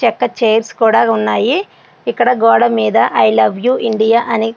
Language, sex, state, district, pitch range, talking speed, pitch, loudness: Telugu, female, Andhra Pradesh, Srikakulam, 220-240 Hz, 170 wpm, 230 Hz, -13 LUFS